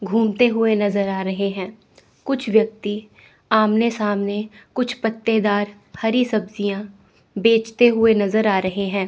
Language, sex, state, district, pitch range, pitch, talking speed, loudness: Hindi, female, Chandigarh, Chandigarh, 200-225 Hz, 215 Hz, 130 wpm, -20 LUFS